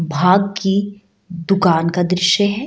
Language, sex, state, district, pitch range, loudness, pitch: Hindi, female, Bihar, Gaya, 175-200 Hz, -16 LUFS, 185 Hz